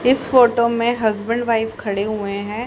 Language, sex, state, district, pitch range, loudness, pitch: Hindi, male, Haryana, Rohtak, 210-240 Hz, -18 LUFS, 230 Hz